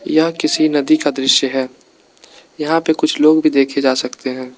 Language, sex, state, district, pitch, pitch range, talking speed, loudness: Hindi, male, Arunachal Pradesh, Lower Dibang Valley, 145 Hz, 130-155 Hz, 195 wpm, -15 LUFS